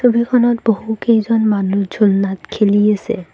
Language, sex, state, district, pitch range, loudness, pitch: Assamese, female, Assam, Kamrup Metropolitan, 200-235 Hz, -15 LUFS, 215 Hz